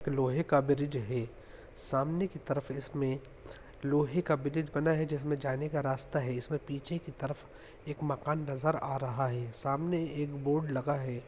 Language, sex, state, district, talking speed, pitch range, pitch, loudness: Hindi, male, Uttarakhand, Uttarkashi, 175 wpm, 135-150 Hz, 145 Hz, -33 LUFS